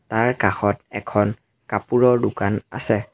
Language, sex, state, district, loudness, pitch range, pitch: Assamese, male, Assam, Sonitpur, -21 LUFS, 105-120 Hz, 110 Hz